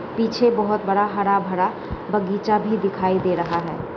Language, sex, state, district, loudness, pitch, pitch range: Hindi, female, Chhattisgarh, Bilaspur, -21 LUFS, 200 Hz, 185-210 Hz